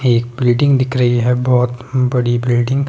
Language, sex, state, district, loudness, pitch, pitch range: Hindi, male, Himachal Pradesh, Shimla, -15 LUFS, 125 Hz, 120-130 Hz